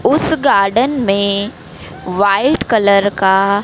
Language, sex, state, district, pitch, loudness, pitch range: Hindi, female, Madhya Pradesh, Dhar, 200 Hz, -13 LUFS, 195-235 Hz